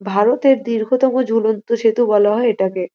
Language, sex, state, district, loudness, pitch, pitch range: Bengali, female, West Bengal, North 24 Parganas, -16 LUFS, 225 Hz, 205-240 Hz